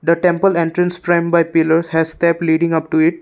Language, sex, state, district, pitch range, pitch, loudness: English, male, Assam, Kamrup Metropolitan, 160-170 Hz, 170 Hz, -15 LUFS